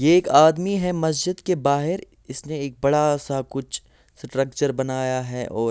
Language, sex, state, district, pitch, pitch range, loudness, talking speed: Hindi, male, Bihar, Patna, 140 Hz, 130-160 Hz, -22 LUFS, 170 wpm